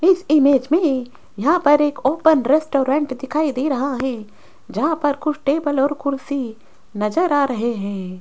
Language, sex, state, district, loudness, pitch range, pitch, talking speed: Hindi, female, Rajasthan, Jaipur, -19 LUFS, 260-300 Hz, 280 Hz, 160 wpm